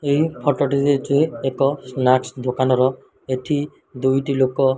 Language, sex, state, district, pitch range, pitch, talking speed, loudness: Odia, male, Odisha, Malkangiri, 130-140 Hz, 135 Hz, 150 wpm, -20 LUFS